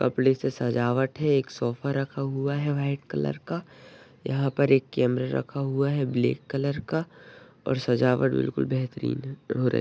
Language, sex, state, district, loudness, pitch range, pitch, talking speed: Hindi, male, Maharashtra, Solapur, -27 LUFS, 125-140 Hz, 135 Hz, 170 wpm